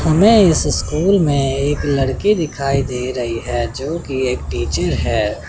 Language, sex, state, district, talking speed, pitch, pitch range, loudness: Hindi, male, Chandigarh, Chandigarh, 155 wpm, 135 Hz, 125-160 Hz, -17 LUFS